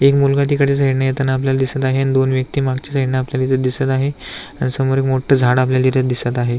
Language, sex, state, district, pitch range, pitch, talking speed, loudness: Marathi, male, Maharashtra, Aurangabad, 130-135 Hz, 130 Hz, 220 wpm, -16 LUFS